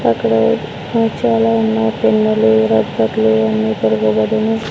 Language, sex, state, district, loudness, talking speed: Telugu, female, Andhra Pradesh, Sri Satya Sai, -14 LUFS, 90 wpm